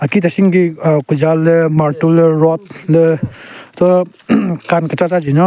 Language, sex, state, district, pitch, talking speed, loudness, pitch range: Rengma, male, Nagaland, Kohima, 165 Hz, 155 wpm, -13 LUFS, 155-180 Hz